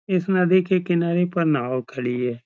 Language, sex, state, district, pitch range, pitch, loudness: Hindi, male, Uttar Pradesh, Etah, 125-180 Hz, 170 Hz, -21 LUFS